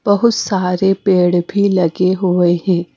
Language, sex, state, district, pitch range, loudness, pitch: Hindi, female, Punjab, Fazilka, 175-195 Hz, -14 LUFS, 185 Hz